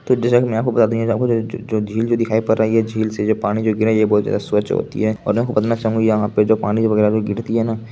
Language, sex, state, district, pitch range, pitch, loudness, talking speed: Hindi, male, Bihar, Begusarai, 110-115 Hz, 110 Hz, -18 LUFS, 225 wpm